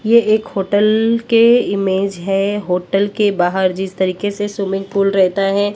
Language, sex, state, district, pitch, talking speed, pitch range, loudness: Hindi, female, Maharashtra, Mumbai Suburban, 200 Hz, 165 wpm, 195-210 Hz, -16 LUFS